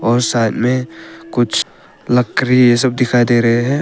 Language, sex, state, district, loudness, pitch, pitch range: Hindi, male, Arunachal Pradesh, Papum Pare, -14 LUFS, 120 Hz, 120-125 Hz